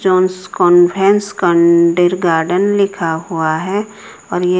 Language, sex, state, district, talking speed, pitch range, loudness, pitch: Hindi, female, Odisha, Sambalpur, 115 wpm, 170-195 Hz, -13 LUFS, 180 Hz